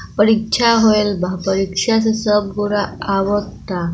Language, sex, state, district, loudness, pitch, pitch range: Hindi, female, Bihar, East Champaran, -17 LUFS, 205 Hz, 195-220 Hz